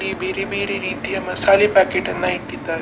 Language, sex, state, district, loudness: Kannada, female, Karnataka, Dakshina Kannada, -19 LUFS